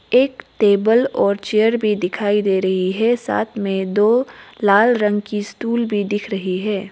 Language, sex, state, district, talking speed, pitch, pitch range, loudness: Hindi, female, Arunachal Pradesh, Lower Dibang Valley, 175 wpm, 210 Hz, 200-230 Hz, -18 LUFS